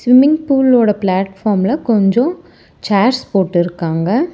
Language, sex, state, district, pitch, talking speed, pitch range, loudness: Tamil, male, Tamil Nadu, Chennai, 215 Hz, 85 wpm, 190-260 Hz, -14 LUFS